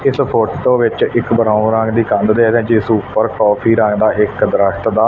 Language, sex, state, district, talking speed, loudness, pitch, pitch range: Punjabi, male, Punjab, Fazilka, 210 wpm, -13 LUFS, 110 Hz, 105-115 Hz